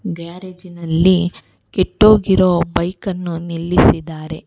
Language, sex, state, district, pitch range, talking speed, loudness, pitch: Kannada, female, Karnataka, Bangalore, 170-185 Hz, 55 wpm, -16 LUFS, 180 Hz